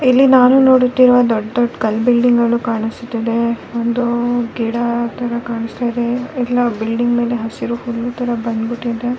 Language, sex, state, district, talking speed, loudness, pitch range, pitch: Kannada, female, Karnataka, Raichur, 145 wpm, -16 LUFS, 230-245 Hz, 240 Hz